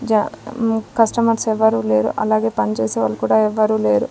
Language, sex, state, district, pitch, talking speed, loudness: Telugu, female, Andhra Pradesh, Sri Satya Sai, 215 Hz, 160 wpm, -18 LUFS